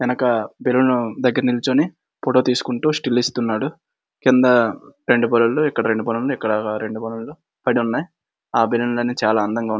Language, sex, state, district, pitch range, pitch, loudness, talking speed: Telugu, male, Andhra Pradesh, Srikakulam, 115-130 Hz, 120 Hz, -19 LUFS, 165 wpm